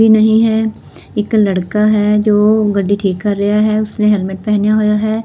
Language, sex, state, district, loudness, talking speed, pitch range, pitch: Punjabi, female, Punjab, Fazilka, -13 LUFS, 185 wpm, 205-215 Hz, 210 Hz